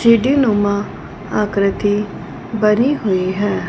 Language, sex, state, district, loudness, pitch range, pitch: Hindi, female, Punjab, Fazilka, -17 LUFS, 200-230 Hz, 210 Hz